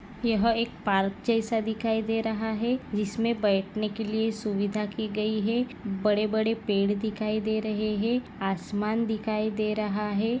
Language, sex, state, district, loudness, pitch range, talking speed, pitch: Hindi, female, Maharashtra, Nagpur, -28 LUFS, 210-225 Hz, 165 wpm, 215 Hz